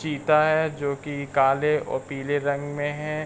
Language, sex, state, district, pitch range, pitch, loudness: Hindi, male, Uttar Pradesh, Varanasi, 140-150 Hz, 145 Hz, -24 LUFS